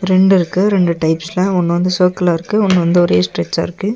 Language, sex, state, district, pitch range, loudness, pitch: Tamil, male, Tamil Nadu, Nilgiris, 170-190 Hz, -14 LUFS, 180 Hz